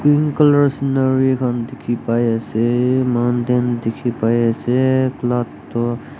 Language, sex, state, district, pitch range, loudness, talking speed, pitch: Nagamese, male, Nagaland, Dimapur, 120-130 Hz, -18 LUFS, 125 wpm, 125 Hz